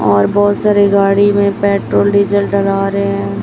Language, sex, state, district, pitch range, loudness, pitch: Hindi, female, Chhattisgarh, Raipur, 195-200 Hz, -12 LUFS, 200 Hz